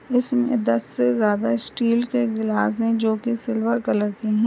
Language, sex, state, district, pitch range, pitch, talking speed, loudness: Hindi, female, Maharashtra, Solapur, 210-235 Hz, 225 Hz, 185 wpm, -22 LUFS